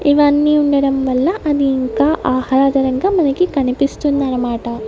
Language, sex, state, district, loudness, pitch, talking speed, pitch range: Telugu, female, Andhra Pradesh, Sri Satya Sai, -15 LUFS, 275 Hz, 135 wpm, 260-295 Hz